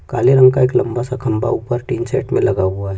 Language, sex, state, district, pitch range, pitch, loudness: Hindi, male, Chhattisgarh, Bastar, 105-130 Hz, 120 Hz, -16 LUFS